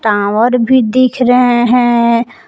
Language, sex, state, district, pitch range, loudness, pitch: Hindi, female, Jharkhand, Palamu, 235-250 Hz, -10 LUFS, 240 Hz